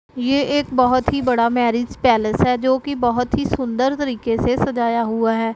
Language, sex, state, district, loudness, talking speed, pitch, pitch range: Hindi, female, Punjab, Pathankot, -18 LUFS, 195 wpm, 245 Hz, 235-260 Hz